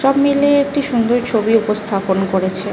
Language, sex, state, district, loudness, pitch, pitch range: Bengali, female, West Bengal, North 24 Parganas, -16 LUFS, 225 Hz, 200-275 Hz